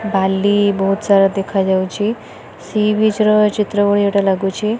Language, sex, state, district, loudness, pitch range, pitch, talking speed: Odia, female, Odisha, Khordha, -15 LUFS, 195-210 Hz, 200 Hz, 150 wpm